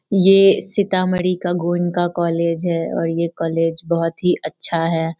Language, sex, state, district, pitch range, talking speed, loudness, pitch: Hindi, female, Bihar, Sitamarhi, 165-180 Hz, 150 wpm, -17 LUFS, 170 Hz